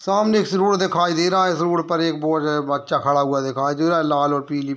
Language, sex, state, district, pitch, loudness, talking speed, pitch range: Hindi, male, Bihar, Muzaffarpur, 160 Hz, -19 LUFS, 300 wpm, 140-175 Hz